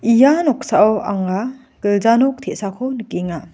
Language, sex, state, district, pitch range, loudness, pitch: Garo, female, Meghalaya, West Garo Hills, 200-260 Hz, -17 LUFS, 230 Hz